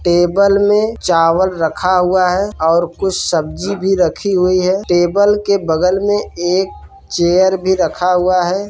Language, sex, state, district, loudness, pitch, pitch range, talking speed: Hindi, male, Bihar, Kishanganj, -14 LUFS, 185 Hz, 175-195 Hz, 160 wpm